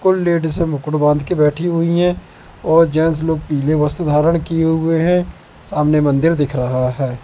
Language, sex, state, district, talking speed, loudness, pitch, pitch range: Hindi, male, Madhya Pradesh, Katni, 175 wpm, -16 LUFS, 160 Hz, 150-165 Hz